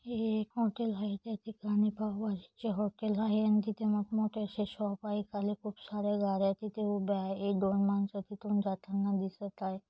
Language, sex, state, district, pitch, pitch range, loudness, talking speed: Marathi, female, Maharashtra, Solapur, 205 Hz, 200-215 Hz, -34 LUFS, 195 wpm